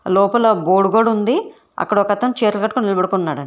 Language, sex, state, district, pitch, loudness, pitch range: Telugu, female, Telangana, Hyderabad, 210 Hz, -16 LUFS, 195-230 Hz